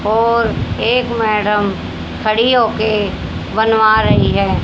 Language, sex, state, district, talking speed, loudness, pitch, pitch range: Hindi, female, Haryana, Rohtak, 105 wpm, -14 LUFS, 220 Hz, 215-230 Hz